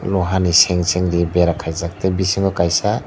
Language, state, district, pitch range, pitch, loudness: Kokborok, Tripura, Dhalai, 85-95 Hz, 90 Hz, -17 LUFS